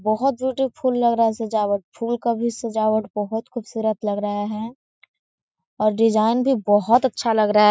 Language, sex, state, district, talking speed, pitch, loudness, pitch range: Hindi, female, Chhattisgarh, Korba, 180 wpm, 225 Hz, -21 LUFS, 215-240 Hz